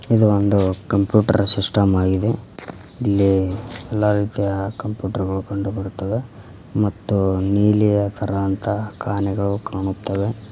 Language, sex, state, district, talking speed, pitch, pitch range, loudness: Kannada, male, Karnataka, Koppal, 95 wpm, 100 Hz, 95-105 Hz, -20 LUFS